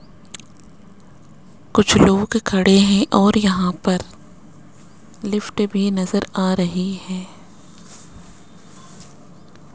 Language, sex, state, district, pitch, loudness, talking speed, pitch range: Hindi, male, Rajasthan, Jaipur, 195 Hz, -18 LUFS, 80 wpm, 185-205 Hz